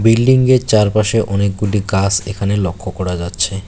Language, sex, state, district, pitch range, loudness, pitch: Bengali, male, West Bengal, Alipurduar, 95-110 Hz, -15 LUFS, 100 Hz